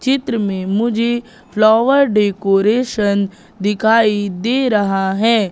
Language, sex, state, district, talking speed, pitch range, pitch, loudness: Hindi, female, Madhya Pradesh, Katni, 100 wpm, 200-235 Hz, 215 Hz, -15 LUFS